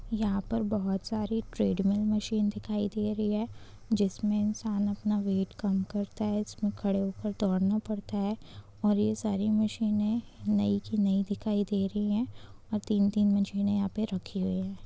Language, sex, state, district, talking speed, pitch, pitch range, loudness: Hindi, female, Uttar Pradesh, Hamirpur, 170 wpm, 205 Hz, 195-215 Hz, -30 LUFS